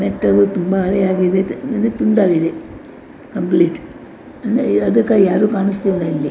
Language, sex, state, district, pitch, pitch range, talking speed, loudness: Kannada, female, Karnataka, Dakshina Kannada, 190 Hz, 175-210 Hz, 95 wpm, -16 LUFS